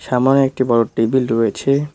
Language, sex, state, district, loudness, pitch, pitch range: Bengali, male, West Bengal, Cooch Behar, -16 LUFS, 130 Hz, 115-135 Hz